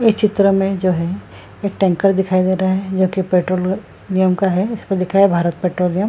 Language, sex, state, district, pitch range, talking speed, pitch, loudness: Hindi, female, Bihar, Lakhisarai, 185-195 Hz, 215 wpm, 190 Hz, -17 LUFS